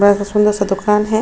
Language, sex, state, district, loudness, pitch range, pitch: Hindi, female, Goa, North and South Goa, -15 LUFS, 200-210 Hz, 210 Hz